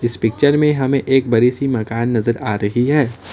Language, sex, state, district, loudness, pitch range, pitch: Hindi, male, Assam, Kamrup Metropolitan, -16 LUFS, 115-135 Hz, 120 Hz